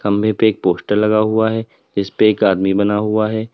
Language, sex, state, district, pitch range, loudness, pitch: Hindi, male, Uttar Pradesh, Lalitpur, 100-110 Hz, -16 LUFS, 105 Hz